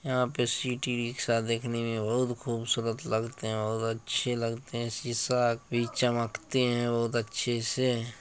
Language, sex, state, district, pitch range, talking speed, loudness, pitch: Hindi, male, Bihar, Begusarai, 115-125 Hz, 155 wpm, -30 LUFS, 120 Hz